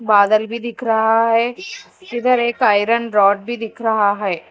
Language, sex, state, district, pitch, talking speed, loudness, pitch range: Hindi, female, Telangana, Hyderabad, 225 Hz, 175 wpm, -17 LUFS, 210-235 Hz